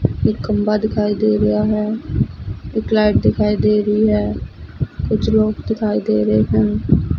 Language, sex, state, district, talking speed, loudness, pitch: Punjabi, female, Punjab, Fazilka, 150 wpm, -17 LUFS, 205 Hz